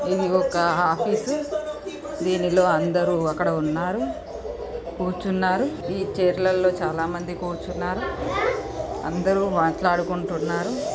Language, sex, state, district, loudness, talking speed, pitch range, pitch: Telugu, female, Telangana, Karimnagar, -24 LUFS, 90 wpm, 175-210 Hz, 185 Hz